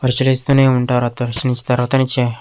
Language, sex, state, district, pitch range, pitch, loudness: Telugu, male, Andhra Pradesh, Krishna, 125-130 Hz, 125 Hz, -16 LUFS